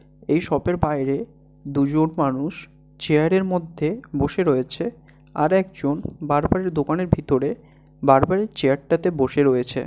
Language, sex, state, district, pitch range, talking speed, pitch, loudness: Bengali, male, West Bengal, Malda, 140-175 Hz, 140 wpm, 150 Hz, -22 LUFS